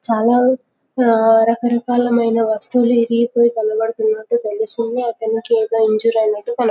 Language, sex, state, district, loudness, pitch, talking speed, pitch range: Telugu, female, Telangana, Karimnagar, -16 LUFS, 230 Hz, 115 wpm, 220-240 Hz